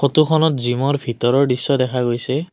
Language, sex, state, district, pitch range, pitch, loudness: Assamese, male, Assam, Kamrup Metropolitan, 125-145 Hz, 135 Hz, -18 LUFS